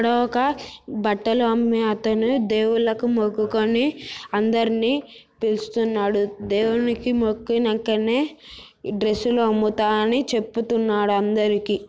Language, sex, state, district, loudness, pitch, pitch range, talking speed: Telugu, female, Telangana, Nalgonda, -21 LUFS, 225 Hz, 215-235 Hz, 80 wpm